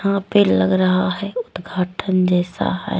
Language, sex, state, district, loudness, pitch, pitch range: Hindi, female, Jharkhand, Deoghar, -19 LUFS, 185 Hz, 180-195 Hz